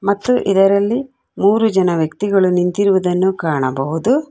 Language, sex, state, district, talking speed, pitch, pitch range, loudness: Kannada, female, Karnataka, Bangalore, 95 wpm, 195 Hz, 180-205 Hz, -16 LUFS